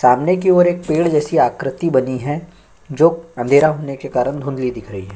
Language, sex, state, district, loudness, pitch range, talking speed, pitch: Hindi, male, Chhattisgarh, Sukma, -17 LUFS, 130-165 Hz, 210 wpm, 145 Hz